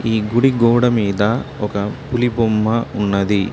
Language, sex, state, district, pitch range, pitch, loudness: Telugu, male, Telangana, Mahabubabad, 105-120 Hz, 115 Hz, -17 LUFS